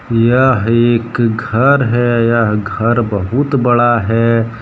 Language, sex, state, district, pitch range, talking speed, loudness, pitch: Hindi, male, Jharkhand, Deoghar, 115-120 Hz, 115 wpm, -13 LUFS, 115 Hz